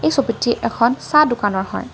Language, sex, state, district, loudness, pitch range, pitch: Assamese, female, Assam, Kamrup Metropolitan, -17 LUFS, 230-275 Hz, 235 Hz